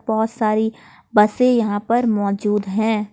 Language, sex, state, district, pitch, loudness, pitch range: Hindi, female, Jharkhand, Palamu, 215 Hz, -19 LUFS, 210-225 Hz